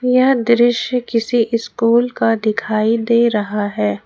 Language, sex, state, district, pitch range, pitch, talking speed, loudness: Hindi, female, Jharkhand, Ranchi, 215-240 Hz, 230 Hz, 135 wpm, -16 LUFS